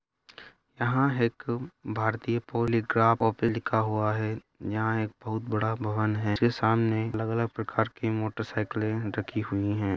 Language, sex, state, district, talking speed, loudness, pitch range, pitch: Hindi, male, Bihar, Madhepura, 140 wpm, -28 LUFS, 110-115 Hz, 110 Hz